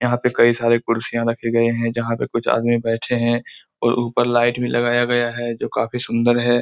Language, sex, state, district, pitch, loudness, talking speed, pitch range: Hindi, male, Bihar, Araria, 120 Hz, -19 LUFS, 225 wpm, 115-120 Hz